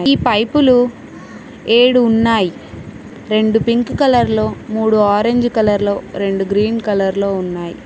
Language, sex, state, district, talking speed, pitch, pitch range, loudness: Telugu, female, Telangana, Mahabubabad, 130 wpm, 220 Hz, 200-240 Hz, -14 LUFS